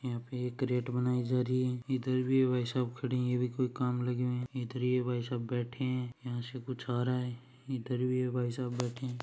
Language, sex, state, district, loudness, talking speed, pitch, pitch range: Marwari, male, Rajasthan, Churu, -34 LUFS, 235 wpm, 125 Hz, 125-130 Hz